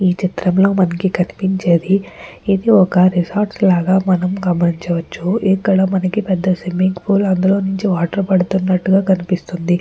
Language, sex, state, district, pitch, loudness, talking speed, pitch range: Telugu, female, Andhra Pradesh, Chittoor, 185 Hz, -16 LUFS, 115 wpm, 180-195 Hz